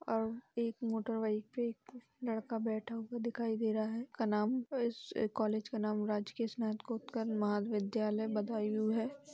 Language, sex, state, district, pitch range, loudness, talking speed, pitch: Hindi, female, Uttar Pradesh, Budaun, 215-235 Hz, -37 LUFS, 155 wpm, 225 Hz